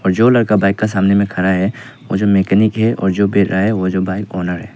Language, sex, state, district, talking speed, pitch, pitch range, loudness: Hindi, male, Arunachal Pradesh, Papum Pare, 290 wpm, 100 Hz, 95-110 Hz, -15 LUFS